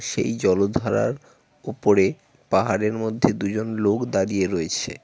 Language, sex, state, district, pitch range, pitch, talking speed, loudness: Bengali, male, West Bengal, Cooch Behar, 95-110 Hz, 100 Hz, 105 wpm, -22 LUFS